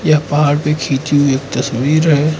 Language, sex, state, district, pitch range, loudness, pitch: Hindi, male, Arunachal Pradesh, Lower Dibang Valley, 135-155 Hz, -14 LUFS, 145 Hz